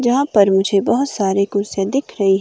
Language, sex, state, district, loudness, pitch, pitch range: Hindi, female, Himachal Pradesh, Shimla, -17 LUFS, 200 Hz, 195-245 Hz